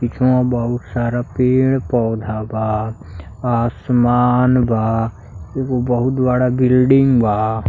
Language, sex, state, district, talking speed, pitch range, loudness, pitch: Bhojpuri, male, Uttar Pradesh, Deoria, 100 wpm, 110-125 Hz, -16 LUFS, 120 Hz